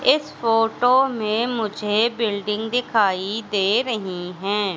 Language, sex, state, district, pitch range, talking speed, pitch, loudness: Hindi, female, Madhya Pradesh, Katni, 200-230 Hz, 115 wpm, 215 Hz, -21 LUFS